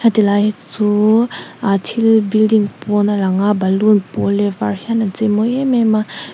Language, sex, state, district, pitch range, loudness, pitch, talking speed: Mizo, female, Mizoram, Aizawl, 195-220 Hz, -15 LUFS, 210 Hz, 180 wpm